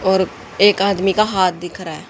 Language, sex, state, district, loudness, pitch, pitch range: Hindi, female, Haryana, Charkhi Dadri, -16 LUFS, 190 Hz, 180-200 Hz